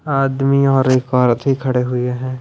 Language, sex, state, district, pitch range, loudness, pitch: Hindi, male, Punjab, Pathankot, 125-135 Hz, -16 LUFS, 130 Hz